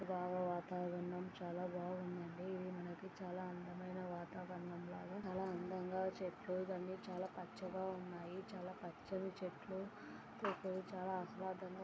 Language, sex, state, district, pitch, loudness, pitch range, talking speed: Telugu, female, Andhra Pradesh, Anantapur, 185 Hz, -47 LUFS, 180-190 Hz, 45 wpm